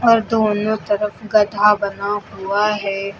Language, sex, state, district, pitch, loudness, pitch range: Hindi, female, Uttar Pradesh, Lucknow, 210 Hz, -18 LUFS, 200-215 Hz